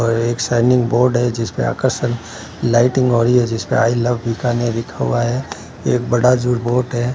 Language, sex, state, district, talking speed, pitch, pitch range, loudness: Hindi, male, Rajasthan, Bikaner, 175 wpm, 120 Hz, 115-125 Hz, -17 LUFS